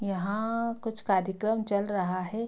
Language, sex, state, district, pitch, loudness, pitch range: Hindi, female, Bihar, Madhepura, 205 Hz, -29 LUFS, 190-225 Hz